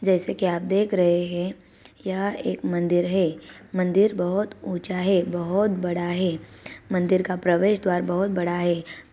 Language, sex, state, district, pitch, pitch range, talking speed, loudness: Hindi, female, Chhattisgarh, Bilaspur, 180 Hz, 175-195 Hz, 160 wpm, -24 LUFS